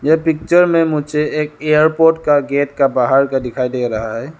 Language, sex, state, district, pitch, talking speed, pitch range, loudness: Hindi, male, Arunachal Pradesh, Lower Dibang Valley, 150 Hz, 205 wpm, 135-155 Hz, -15 LUFS